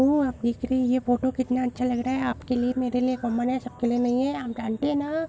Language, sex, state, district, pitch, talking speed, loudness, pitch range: Hindi, female, Bihar, Supaul, 250 Hz, 315 wpm, -26 LUFS, 245-260 Hz